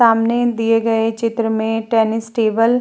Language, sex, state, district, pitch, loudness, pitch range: Hindi, female, Uttar Pradesh, Muzaffarnagar, 225 Hz, -17 LUFS, 225-230 Hz